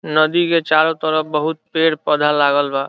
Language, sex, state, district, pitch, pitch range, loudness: Bhojpuri, male, Bihar, Saran, 155 Hz, 150-160 Hz, -16 LUFS